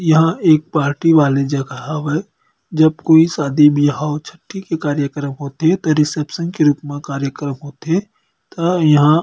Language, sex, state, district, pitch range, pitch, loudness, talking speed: Chhattisgarhi, male, Chhattisgarh, Kabirdham, 145-165 Hz, 150 Hz, -16 LUFS, 150 wpm